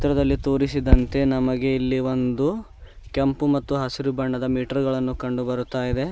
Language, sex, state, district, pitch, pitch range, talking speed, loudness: Kannada, male, Karnataka, Bidar, 135 Hz, 130-140 Hz, 135 wpm, -23 LUFS